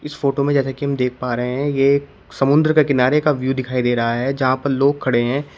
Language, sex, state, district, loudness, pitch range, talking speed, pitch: Hindi, male, Uttar Pradesh, Shamli, -18 LUFS, 125-140 Hz, 270 wpm, 135 Hz